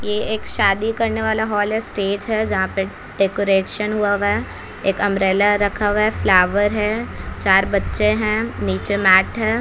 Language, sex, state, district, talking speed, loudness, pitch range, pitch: Hindi, female, Bihar, Patna, 170 wpm, -18 LUFS, 195-215 Hz, 205 Hz